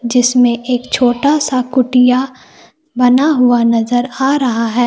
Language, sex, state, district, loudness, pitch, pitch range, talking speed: Hindi, female, Jharkhand, Palamu, -13 LUFS, 250 Hz, 245-260 Hz, 135 wpm